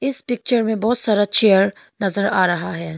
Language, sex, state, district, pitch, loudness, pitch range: Hindi, female, Arunachal Pradesh, Longding, 205 Hz, -17 LUFS, 195-240 Hz